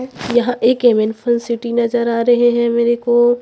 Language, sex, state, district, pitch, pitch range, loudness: Hindi, female, Chhattisgarh, Raipur, 240 Hz, 235-240 Hz, -15 LUFS